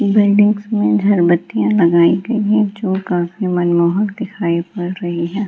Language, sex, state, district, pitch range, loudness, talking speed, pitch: Hindi, female, Bihar, Gaya, 170-205 Hz, -15 LUFS, 165 wpm, 185 Hz